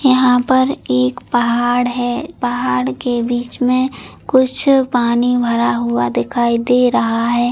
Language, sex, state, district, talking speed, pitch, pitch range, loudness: Hindi, female, Chhattisgarh, Bilaspur, 135 wpm, 245 Hz, 235-250 Hz, -15 LUFS